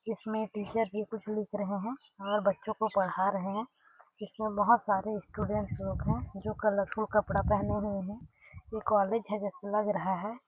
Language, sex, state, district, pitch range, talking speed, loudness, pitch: Hindi, female, Chhattisgarh, Sarguja, 200-220 Hz, 185 wpm, -32 LUFS, 210 Hz